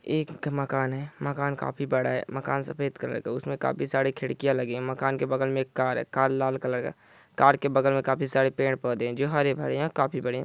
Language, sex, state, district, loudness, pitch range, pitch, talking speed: Hindi, male, Bihar, Saran, -27 LUFS, 130-140 Hz, 135 Hz, 245 wpm